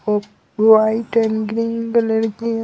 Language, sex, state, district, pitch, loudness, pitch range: Hindi, male, Bihar, Patna, 225 Hz, -17 LUFS, 215-230 Hz